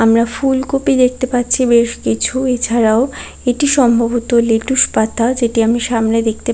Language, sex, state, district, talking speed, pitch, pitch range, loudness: Bengali, female, West Bengal, Kolkata, 145 wpm, 235 Hz, 230-255 Hz, -14 LUFS